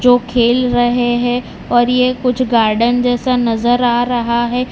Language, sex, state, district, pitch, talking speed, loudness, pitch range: Hindi, male, Gujarat, Valsad, 245 Hz, 165 wpm, -14 LUFS, 240-250 Hz